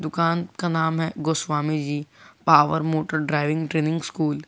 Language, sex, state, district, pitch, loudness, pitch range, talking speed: Hindi, male, Jharkhand, Garhwa, 155 Hz, -23 LUFS, 150-160 Hz, 160 wpm